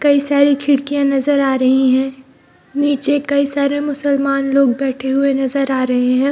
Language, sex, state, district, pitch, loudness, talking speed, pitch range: Hindi, female, Bihar, Jahanabad, 275 Hz, -15 LUFS, 170 wpm, 265-285 Hz